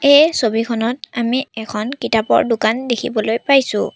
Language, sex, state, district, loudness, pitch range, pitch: Assamese, female, Assam, Sonitpur, -17 LUFS, 220-260 Hz, 235 Hz